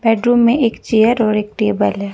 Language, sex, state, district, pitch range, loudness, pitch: Hindi, female, Bihar, West Champaran, 210-235 Hz, -15 LUFS, 220 Hz